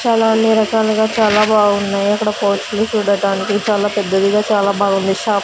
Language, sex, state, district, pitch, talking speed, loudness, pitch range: Telugu, female, Andhra Pradesh, Sri Satya Sai, 210 Hz, 145 wpm, -15 LUFS, 200-220 Hz